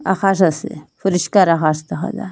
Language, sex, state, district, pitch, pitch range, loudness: Bengali, female, Assam, Hailakandi, 190 Hz, 165-195 Hz, -17 LUFS